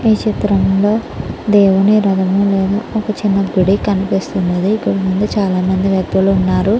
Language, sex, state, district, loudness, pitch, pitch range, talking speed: Telugu, female, Andhra Pradesh, Chittoor, -14 LUFS, 195 Hz, 190-210 Hz, 135 wpm